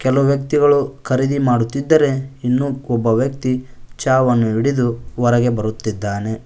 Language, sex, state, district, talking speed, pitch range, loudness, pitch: Kannada, male, Karnataka, Koppal, 100 wpm, 115-135 Hz, -17 LUFS, 130 Hz